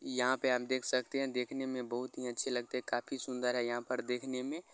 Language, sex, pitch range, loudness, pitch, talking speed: Maithili, male, 125-130 Hz, -36 LUFS, 125 Hz, 265 wpm